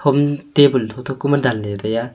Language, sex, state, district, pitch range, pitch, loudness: Wancho, male, Arunachal Pradesh, Longding, 115-145 Hz, 135 Hz, -18 LUFS